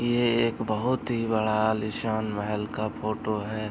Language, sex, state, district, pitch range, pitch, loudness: Hindi, male, Bihar, Araria, 105-115 Hz, 110 Hz, -27 LUFS